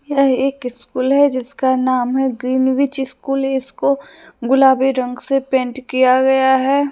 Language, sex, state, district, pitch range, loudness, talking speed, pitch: Hindi, female, Jharkhand, Deoghar, 255-270 Hz, -16 LUFS, 145 wpm, 265 Hz